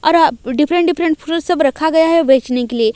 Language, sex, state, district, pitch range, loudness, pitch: Hindi, female, Odisha, Malkangiri, 260-330 Hz, -14 LUFS, 315 Hz